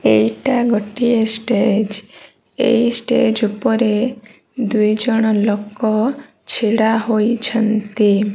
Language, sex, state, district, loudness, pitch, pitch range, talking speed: Odia, female, Odisha, Malkangiri, -17 LUFS, 220 Hz, 210-235 Hz, 70 wpm